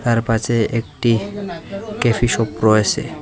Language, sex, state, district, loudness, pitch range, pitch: Bengali, male, Assam, Hailakandi, -18 LUFS, 115-150 Hz, 120 Hz